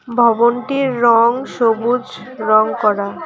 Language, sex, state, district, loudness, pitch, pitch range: Bengali, female, West Bengal, Alipurduar, -15 LUFS, 235 Hz, 225-250 Hz